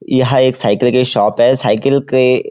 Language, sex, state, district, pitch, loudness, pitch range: Hindi, male, Uttarakhand, Uttarkashi, 125 Hz, -13 LUFS, 125-130 Hz